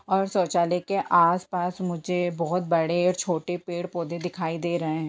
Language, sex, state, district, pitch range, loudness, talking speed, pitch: Hindi, female, Jharkhand, Sahebganj, 170-180 Hz, -25 LUFS, 175 wpm, 175 Hz